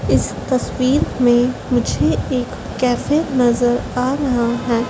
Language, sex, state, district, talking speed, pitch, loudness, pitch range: Hindi, female, Madhya Pradesh, Dhar, 120 wpm, 250 Hz, -18 LUFS, 240-255 Hz